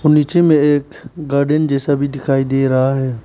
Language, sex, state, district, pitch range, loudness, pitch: Hindi, male, Arunachal Pradesh, Papum Pare, 135-150 Hz, -15 LUFS, 140 Hz